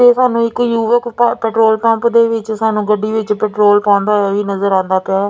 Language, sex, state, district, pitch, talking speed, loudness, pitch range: Punjabi, female, Punjab, Fazilka, 220 Hz, 215 wpm, -13 LUFS, 205-230 Hz